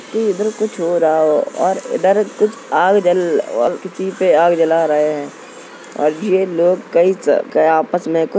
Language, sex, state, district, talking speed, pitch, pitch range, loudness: Hindi, female, Uttar Pradesh, Jalaun, 195 wpm, 175 Hz, 160-190 Hz, -15 LUFS